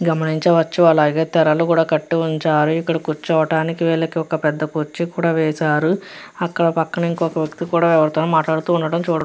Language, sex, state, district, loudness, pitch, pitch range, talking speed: Telugu, female, Andhra Pradesh, Chittoor, -18 LUFS, 160 Hz, 155-170 Hz, 130 wpm